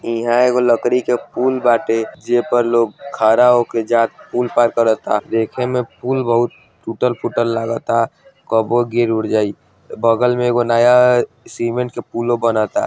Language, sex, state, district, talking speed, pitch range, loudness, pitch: Bhojpuri, male, Bihar, Saran, 170 wpm, 115-125 Hz, -16 LUFS, 120 Hz